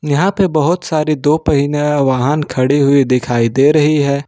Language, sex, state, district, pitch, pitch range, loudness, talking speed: Hindi, male, Jharkhand, Ranchi, 145 Hz, 140-155 Hz, -13 LUFS, 180 wpm